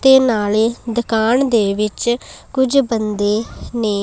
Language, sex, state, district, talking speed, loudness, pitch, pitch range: Punjabi, female, Punjab, Pathankot, 120 wpm, -17 LUFS, 230 Hz, 210-245 Hz